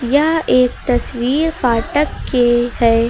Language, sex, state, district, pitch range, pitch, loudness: Hindi, female, Uttar Pradesh, Lucknow, 240-290 Hz, 245 Hz, -15 LUFS